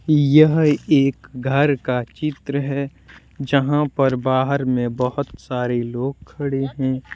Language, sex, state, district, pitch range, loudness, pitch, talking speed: Hindi, male, Jharkhand, Deoghar, 130-145 Hz, -20 LUFS, 135 Hz, 135 wpm